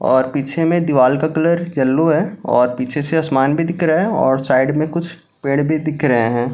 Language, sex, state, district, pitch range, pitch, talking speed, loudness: Hindi, male, Bihar, Gaya, 130-165 Hz, 150 Hz, 230 wpm, -16 LUFS